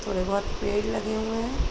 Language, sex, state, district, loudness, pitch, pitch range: Hindi, female, Uttar Pradesh, Muzaffarnagar, -28 LUFS, 210 Hz, 200-220 Hz